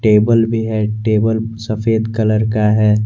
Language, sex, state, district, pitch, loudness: Hindi, male, Jharkhand, Garhwa, 110 Hz, -15 LUFS